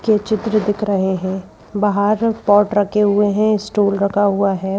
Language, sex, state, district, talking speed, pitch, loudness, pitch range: Hindi, female, Madhya Pradesh, Bhopal, 175 wpm, 205 Hz, -17 LUFS, 200-215 Hz